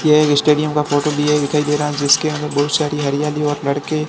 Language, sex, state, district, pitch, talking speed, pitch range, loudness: Hindi, male, Rajasthan, Barmer, 150 Hz, 250 wpm, 145-150 Hz, -16 LUFS